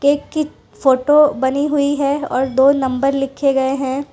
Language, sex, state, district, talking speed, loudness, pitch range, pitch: Hindi, female, Gujarat, Valsad, 175 wpm, -16 LUFS, 265-290 Hz, 275 Hz